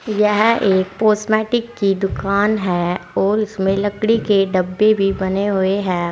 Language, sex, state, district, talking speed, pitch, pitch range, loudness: Hindi, female, Uttar Pradesh, Saharanpur, 145 wpm, 200 Hz, 190-215 Hz, -17 LUFS